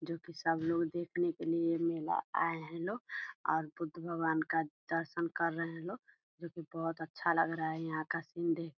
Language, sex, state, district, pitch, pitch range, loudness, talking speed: Hindi, female, Bihar, Purnia, 165 Hz, 160-170 Hz, -36 LUFS, 225 wpm